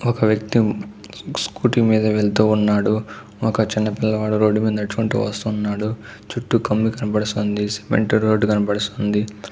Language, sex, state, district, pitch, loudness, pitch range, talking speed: Telugu, male, Karnataka, Dharwad, 110 Hz, -20 LUFS, 105-110 Hz, 125 wpm